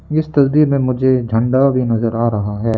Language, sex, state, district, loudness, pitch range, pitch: Hindi, male, Arunachal Pradesh, Lower Dibang Valley, -15 LUFS, 115-140 Hz, 125 Hz